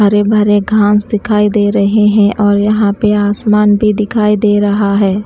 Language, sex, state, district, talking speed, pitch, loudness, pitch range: Hindi, female, Himachal Pradesh, Shimla, 185 wpm, 210 Hz, -11 LUFS, 205-210 Hz